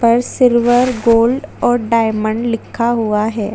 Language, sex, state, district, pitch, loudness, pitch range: Hindi, female, Chhattisgarh, Jashpur, 230 Hz, -14 LUFS, 220-240 Hz